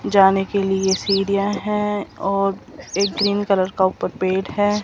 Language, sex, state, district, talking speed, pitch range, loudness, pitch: Hindi, female, Rajasthan, Jaipur, 160 wpm, 190-205 Hz, -20 LUFS, 195 Hz